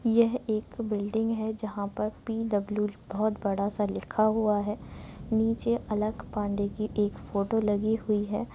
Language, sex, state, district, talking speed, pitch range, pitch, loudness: Hindi, female, Uttar Pradesh, Muzaffarnagar, 160 wpm, 205-220 Hz, 215 Hz, -29 LUFS